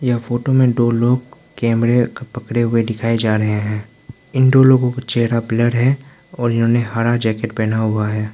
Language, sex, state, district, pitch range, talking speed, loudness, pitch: Hindi, male, Arunachal Pradesh, Lower Dibang Valley, 115-125 Hz, 185 wpm, -17 LUFS, 120 Hz